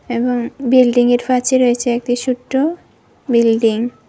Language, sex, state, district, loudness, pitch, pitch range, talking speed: Bengali, female, Tripura, West Tripura, -15 LUFS, 245 Hz, 240-255 Hz, 115 wpm